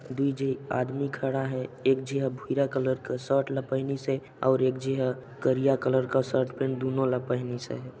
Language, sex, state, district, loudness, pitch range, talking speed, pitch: Chhattisgarhi, male, Chhattisgarh, Sarguja, -28 LUFS, 130-135 Hz, 200 wpm, 130 Hz